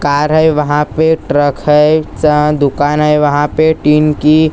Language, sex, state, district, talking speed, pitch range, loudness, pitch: Hindi, male, Maharashtra, Gondia, 170 wpm, 145-155 Hz, -11 LUFS, 150 Hz